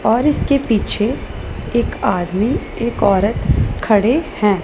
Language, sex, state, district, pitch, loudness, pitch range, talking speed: Hindi, female, Punjab, Pathankot, 220 Hz, -17 LUFS, 205-250 Hz, 115 wpm